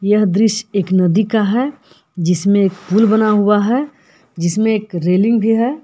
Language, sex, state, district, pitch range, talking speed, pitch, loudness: Hindi, female, Jharkhand, Palamu, 190-220 Hz, 175 wpm, 210 Hz, -15 LUFS